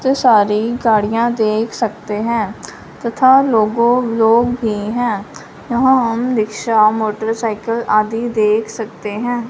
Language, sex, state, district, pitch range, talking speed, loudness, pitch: Hindi, female, Punjab, Fazilka, 215-240 Hz, 120 wpm, -16 LUFS, 225 Hz